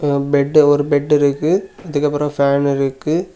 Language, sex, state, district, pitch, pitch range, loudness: Tamil, male, Tamil Nadu, Kanyakumari, 145 Hz, 140-150 Hz, -16 LUFS